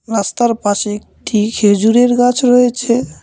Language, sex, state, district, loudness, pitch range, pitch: Bengali, male, West Bengal, Cooch Behar, -13 LUFS, 210-245 Hz, 230 Hz